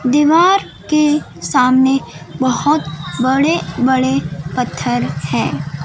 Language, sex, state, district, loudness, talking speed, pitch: Hindi, female, Madhya Pradesh, Dhar, -15 LUFS, 80 wpm, 255 Hz